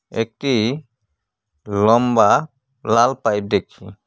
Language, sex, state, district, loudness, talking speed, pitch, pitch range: Bengali, male, West Bengal, Cooch Behar, -18 LUFS, 75 wpm, 115 Hz, 105-130 Hz